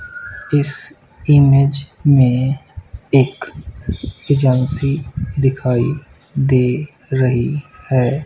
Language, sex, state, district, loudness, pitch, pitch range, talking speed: Hindi, male, Punjab, Kapurthala, -16 LUFS, 135 Hz, 125-145 Hz, 65 wpm